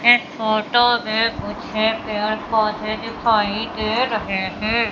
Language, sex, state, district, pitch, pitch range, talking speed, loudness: Hindi, female, Madhya Pradesh, Katni, 220 Hz, 215-230 Hz, 120 wpm, -20 LUFS